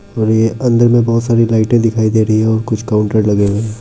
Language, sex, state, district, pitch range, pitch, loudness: Hindi, male, Bihar, Darbhanga, 110-115 Hz, 110 Hz, -13 LUFS